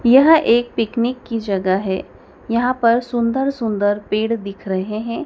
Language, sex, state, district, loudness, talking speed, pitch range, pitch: Hindi, female, Madhya Pradesh, Dhar, -18 LUFS, 160 wpm, 205-245 Hz, 230 Hz